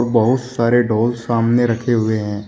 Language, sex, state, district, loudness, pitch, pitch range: Hindi, male, Uttar Pradesh, Shamli, -17 LUFS, 115 Hz, 110-120 Hz